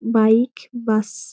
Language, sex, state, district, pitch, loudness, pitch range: Bengali, female, West Bengal, Dakshin Dinajpur, 220 Hz, -19 LUFS, 215-235 Hz